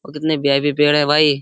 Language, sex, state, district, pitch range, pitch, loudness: Hindi, male, Uttar Pradesh, Jyotiba Phule Nagar, 145-150 Hz, 150 Hz, -16 LUFS